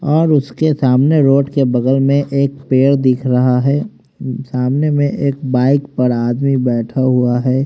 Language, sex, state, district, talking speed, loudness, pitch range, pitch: Hindi, male, Haryana, Rohtak, 165 wpm, -14 LUFS, 125-140 Hz, 135 Hz